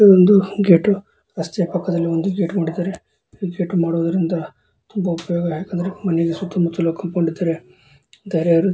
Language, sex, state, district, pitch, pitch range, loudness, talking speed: Kannada, male, Karnataka, Dharwad, 175 Hz, 165-190 Hz, -19 LUFS, 130 wpm